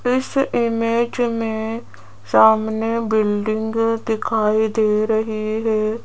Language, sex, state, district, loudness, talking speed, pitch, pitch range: Hindi, female, Rajasthan, Jaipur, -19 LUFS, 90 wpm, 220 Hz, 215-230 Hz